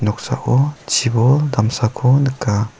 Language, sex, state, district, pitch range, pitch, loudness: Garo, male, Meghalaya, South Garo Hills, 110-140 Hz, 125 Hz, -17 LUFS